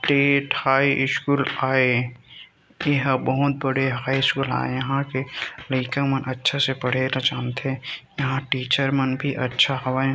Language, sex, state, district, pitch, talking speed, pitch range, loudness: Chhattisgarhi, male, Chhattisgarh, Rajnandgaon, 135 Hz, 150 wpm, 130-140 Hz, -22 LUFS